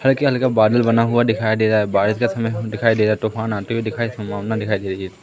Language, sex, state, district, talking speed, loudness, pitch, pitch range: Hindi, male, Madhya Pradesh, Katni, 265 wpm, -19 LUFS, 110 Hz, 105-115 Hz